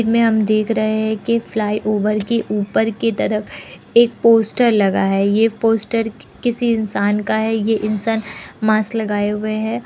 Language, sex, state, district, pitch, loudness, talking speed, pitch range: Hindi, female, Bihar, Kishanganj, 220 Hz, -17 LUFS, 170 wpm, 210-225 Hz